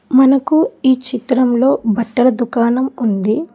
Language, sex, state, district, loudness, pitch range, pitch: Telugu, female, Telangana, Hyderabad, -14 LUFS, 235-265 Hz, 255 Hz